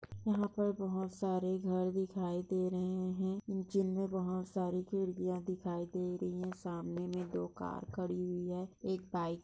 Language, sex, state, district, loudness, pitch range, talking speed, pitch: Hindi, female, Uttar Pradesh, Jyotiba Phule Nagar, -38 LUFS, 180-190 Hz, 170 wpm, 185 Hz